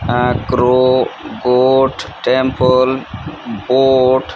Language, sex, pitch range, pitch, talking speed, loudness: English, male, 125-130 Hz, 130 Hz, 70 wpm, -14 LUFS